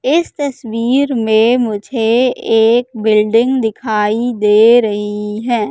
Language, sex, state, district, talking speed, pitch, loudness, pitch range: Hindi, female, Madhya Pradesh, Katni, 105 wpm, 225 Hz, -13 LUFS, 215-245 Hz